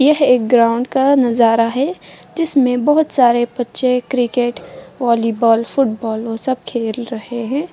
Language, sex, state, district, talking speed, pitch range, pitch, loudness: Hindi, female, Bihar, Madhepura, 140 wpm, 230-270 Hz, 245 Hz, -15 LUFS